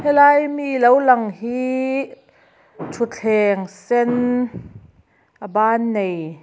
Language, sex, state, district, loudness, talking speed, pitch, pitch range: Mizo, female, Mizoram, Aizawl, -18 LUFS, 95 wpm, 230 Hz, 200-255 Hz